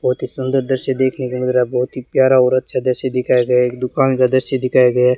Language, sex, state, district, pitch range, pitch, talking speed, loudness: Hindi, male, Rajasthan, Bikaner, 125-130 Hz, 130 Hz, 280 wpm, -16 LUFS